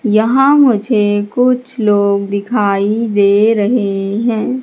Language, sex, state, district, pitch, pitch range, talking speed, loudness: Hindi, female, Madhya Pradesh, Katni, 215 Hz, 205-245 Hz, 105 wpm, -13 LUFS